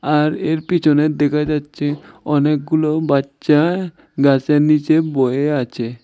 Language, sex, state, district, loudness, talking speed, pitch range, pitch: Bengali, male, Tripura, West Tripura, -17 LUFS, 110 wpm, 145-155 Hz, 150 Hz